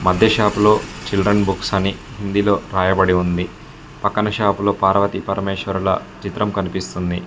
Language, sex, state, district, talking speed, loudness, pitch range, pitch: Telugu, male, Telangana, Mahabubabad, 140 wpm, -18 LUFS, 95-105 Hz, 100 Hz